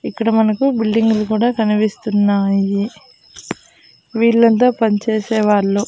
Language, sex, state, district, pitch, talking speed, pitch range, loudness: Telugu, female, Andhra Pradesh, Annamaya, 220 Hz, 80 wpm, 205-225 Hz, -15 LUFS